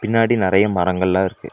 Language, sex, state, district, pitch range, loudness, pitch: Tamil, male, Tamil Nadu, Nilgiris, 95-110 Hz, -17 LUFS, 95 Hz